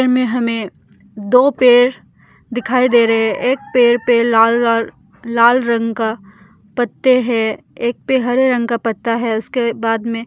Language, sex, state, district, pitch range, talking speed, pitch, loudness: Hindi, female, Mizoram, Aizawl, 225-245 Hz, 165 wpm, 235 Hz, -15 LUFS